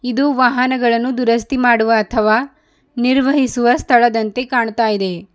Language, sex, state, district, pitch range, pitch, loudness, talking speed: Kannada, female, Karnataka, Bidar, 225-255 Hz, 245 Hz, -15 LUFS, 90 wpm